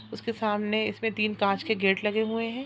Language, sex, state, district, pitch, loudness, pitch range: Hindi, female, Bihar, Jamui, 215 Hz, -27 LUFS, 210-225 Hz